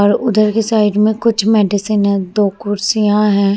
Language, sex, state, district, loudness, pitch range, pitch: Hindi, female, Bihar, Vaishali, -14 LUFS, 205-215 Hz, 210 Hz